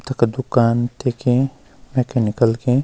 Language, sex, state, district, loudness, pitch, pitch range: Garhwali, male, Uttarakhand, Uttarkashi, -19 LUFS, 125 Hz, 120-130 Hz